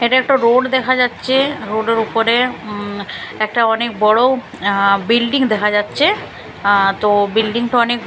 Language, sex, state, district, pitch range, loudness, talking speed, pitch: Bengali, female, Bihar, Katihar, 210-250 Hz, -15 LUFS, 155 wpm, 230 Hz